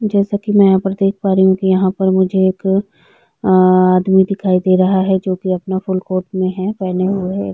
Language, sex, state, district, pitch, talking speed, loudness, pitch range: Hindi, female, Chhattisgarh, Jashpur, 190 Hz, 230 wpm, -14 LUFS, 185-195 Hz